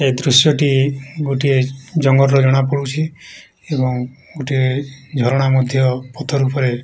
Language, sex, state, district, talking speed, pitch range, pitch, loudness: Odia, male, Odisha, Khordha, 125 wpm, 130-140 Hz, 135 Hz, -16 LUFS